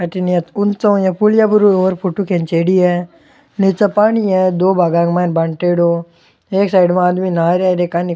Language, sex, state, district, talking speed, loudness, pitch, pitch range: Rajasthani, male, Rajasthan, Churu, 215 wpm, -14 LUFS, 185 Hz, 175-195 Hz